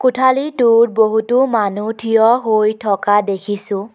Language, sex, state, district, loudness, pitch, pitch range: Assamese, female, Assam, Kamrup Metropolitan, -15 LUFS, 220 Hz, 205-240 Hz